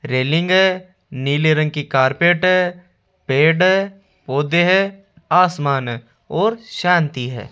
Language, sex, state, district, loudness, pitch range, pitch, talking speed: Hindi, male, Rajasthan, Jaipur, -17 LUFS, 140-185 Hz, 170 Hz, 95 wpm